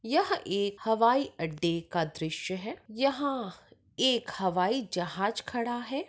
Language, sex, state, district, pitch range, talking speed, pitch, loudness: Hindi, female, Maharashtra, Pune, 180-255 Hz, 130 wpm, 220 Hz, -30 LUFS